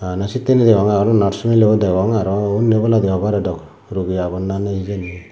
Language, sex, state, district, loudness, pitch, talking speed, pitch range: Chakma, male, Tripura, Unakoti, -16 LUFS, 100 Hz, 190 wpm, 95-110 Hz